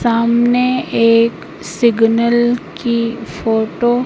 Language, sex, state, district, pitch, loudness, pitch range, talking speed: Hindi, female, Madhya Pradesh, Katni, 235 Hz, -14 LUFS, 230-240 Hz, 90 wpm